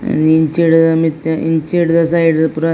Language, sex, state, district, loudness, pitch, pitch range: Tulu, female, Karnataka, Dakshina Kannada, -13 LUFS, 165 Hz, 160-165 Hz